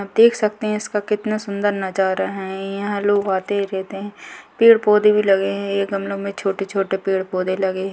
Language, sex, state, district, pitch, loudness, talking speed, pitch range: Hindi, female, Rajasthan, Nagaur, 200 Hz, -19 LUFS, 210 wpm, 195-210 Hz